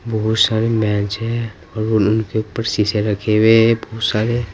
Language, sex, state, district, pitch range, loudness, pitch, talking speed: Hindi, male, Uttar Pradesh, Saharanpur, 105-115 Hz, -17 LUFS, 110 Hz, 170 wpm